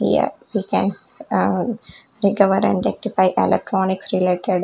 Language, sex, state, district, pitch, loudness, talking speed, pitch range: English, female, Chandigarh, Chandigarh, 190 Hz, -19 LUFS, 105 wpm, 185-200 Hz